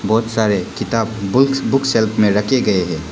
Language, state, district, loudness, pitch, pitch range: Hindi, Arunachal Pradesh, Papum Pare, -16 LUFS, 110 Hz, 100-125 Hz